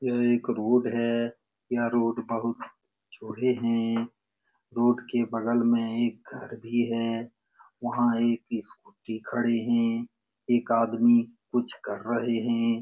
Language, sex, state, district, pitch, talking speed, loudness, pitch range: Hindi, male, Bihar, Lakhisarai, 115 Hz, 130 wpm, -27 LUFS, 115-120 Hz